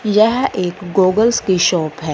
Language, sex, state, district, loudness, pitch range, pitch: Hindi, female, Punjab, Fazilka, -15 LUFS, 175-215 Hz, 185 Hz